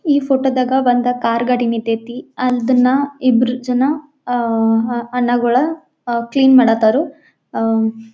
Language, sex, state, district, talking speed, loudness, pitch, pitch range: Kannada, female, Karnataka, Belgaum, 120 wpm, -16 LUFS, 245 Hz, 235-265 Hz